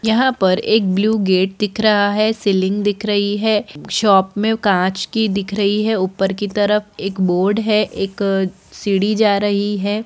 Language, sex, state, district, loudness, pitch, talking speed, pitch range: Hindi, female, Bihar, Jahanabad, -17 LUFS, 205 Hz, 180 wpm, 195-215 Hz